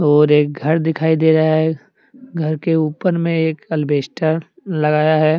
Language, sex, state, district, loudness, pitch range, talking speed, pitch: Hindi, male, Jharkhand, Deoghar, -17 LUFS, 150-160 Hz, 165 wpm, 160 Hz